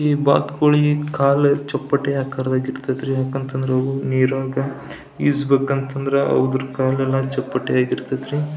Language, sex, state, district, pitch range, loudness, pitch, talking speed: Kannada, male, Karnataka, Belgaum, 130-140 Hz, -20 LUFS, 135 Hz, 120 wpm